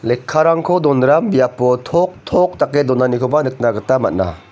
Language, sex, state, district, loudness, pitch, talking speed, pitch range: Garo, male, Meghalaya, North Garo Hills, -15 LUFS, 130 Hz, 120 wpm, 120-155 Hz